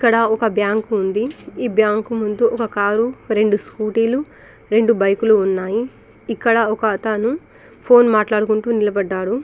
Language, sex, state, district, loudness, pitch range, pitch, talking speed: Telugu, female, Telangana, Karimnagar, -17 LUFS, 210-230 Hz, 220 Hz, 125 wpm